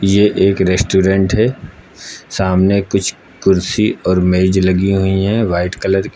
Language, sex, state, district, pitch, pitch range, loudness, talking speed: Hindi, male, Uttar Pradesh, Lucknow, 95 Hz, 95-100 Hz, -14 LUFS, 145 wpm